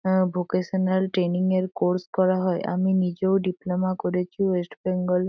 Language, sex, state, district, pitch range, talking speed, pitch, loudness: Bengali, female, West Bengal, Kolkata, 180-185 Hz, 160 wpm, 185 Hz, -24 LUFS